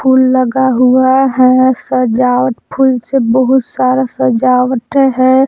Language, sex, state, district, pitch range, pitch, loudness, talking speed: Hindi, female, Jharkhand, Palamu, 255-260 Hz, 255 Hz, -11 LUFS, 120 wpm